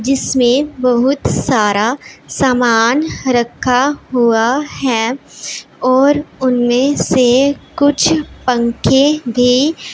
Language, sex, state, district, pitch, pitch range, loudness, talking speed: Hindi, female, Punjab, Pathankot, 255 Hz, 240-280 Hz, -13 LUFS, 80 wpm